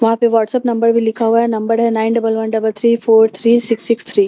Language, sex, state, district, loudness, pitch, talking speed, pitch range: Hindi, female, Bihar, Katihar, -14 LUFS, 230 Hz, 305 wpm, 220-230 Hz